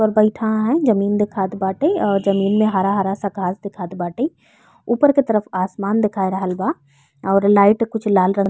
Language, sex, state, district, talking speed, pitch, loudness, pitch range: Bhojpuri, female, Uttar Pradesh, Ghazipur, 205 wpm, 200 Hz, -18 LUFS, 190-220 Hz